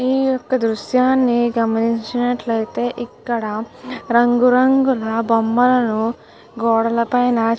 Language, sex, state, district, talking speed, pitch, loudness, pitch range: Telugu, female, Andhra Pradesh, Krishna, 85 wpm, 235 Hz, -17 LUFS, 225-250 Hz